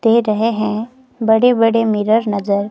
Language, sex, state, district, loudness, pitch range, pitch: Hindi, female, Himachal Pradesh, Shimla, -15 LUFS, 215-230 Hz, 225 Hz